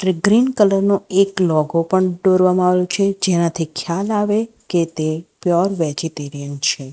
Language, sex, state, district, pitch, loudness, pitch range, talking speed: Gujarati, female, Gujarat, Valsad, 180 Hz, -18 LUFS, 165-195 Hz, 155 wpm